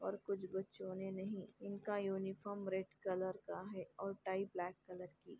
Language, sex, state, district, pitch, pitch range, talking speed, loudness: Hindi, female, Bihar, Madhepura, 190 Hz, 185-200 Hz, 165 wpm, -45 LUFS